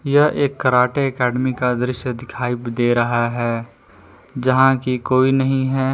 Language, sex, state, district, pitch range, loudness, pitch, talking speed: Hindi, male, Jharkhand, Palamu, 120-135 Hz, -18 LUFS, 125 Hz, 150 wpm